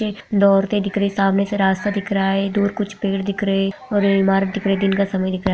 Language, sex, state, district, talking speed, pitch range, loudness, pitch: Hindi, female, Bihar, Jamui, 315 wpm, 195-200 Hz, -19 LUFS, 200 Hz